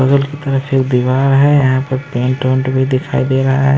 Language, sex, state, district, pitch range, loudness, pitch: Hindi, male, Maharashtra, Mumbai Suburban, 130-135 Hz, -14 LUFS, 130 Hz